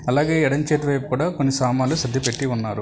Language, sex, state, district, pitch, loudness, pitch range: Telugu, male, Telangana, Hyderabad, 135 Hz, -21 LUFS, 125-150 Hz